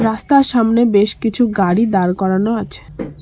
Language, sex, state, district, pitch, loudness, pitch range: Bengali, female, West Bengal, Cooch Behar, 215 Hz, -15 LUFS, 190-230 Hz